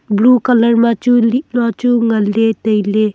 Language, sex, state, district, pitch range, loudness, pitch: Wancho, female, Arunachal Pradesh, Longding, 215-245 Hz, -13 LUFS, 230 Hz